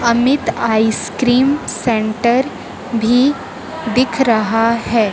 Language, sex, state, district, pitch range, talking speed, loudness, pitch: Hindi, female, Chhattisgarh, Raipur, 225-260 Hz, 80 wpm, -15 LUFS, 235 Hz